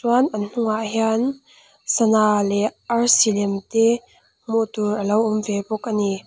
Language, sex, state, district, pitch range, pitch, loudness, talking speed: Mizo, female, Mizoram, Aizawl, 210-235 Hz, 220 Hz, -20 LUFS, 170 wpm